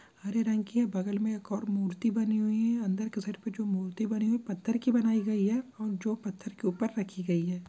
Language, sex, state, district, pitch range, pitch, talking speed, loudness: Hindi, male, Andhra Pradesh, Visakhapatnam, 200-225 Hz, 215 Hz, 280 wpm, -31 LUFS